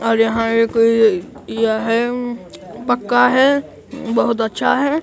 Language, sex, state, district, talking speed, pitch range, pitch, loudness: Hindi, male, Bihar, Katihar, 120 wpm, 225-245 Hz, 230 Hz, -16 LUFS